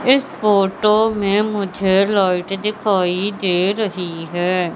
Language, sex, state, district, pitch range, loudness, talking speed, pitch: Hindi, female, Madhya Pradesh, Katni, 180-210 Hz, -18 LUFS, 115 wpm, 195 Hz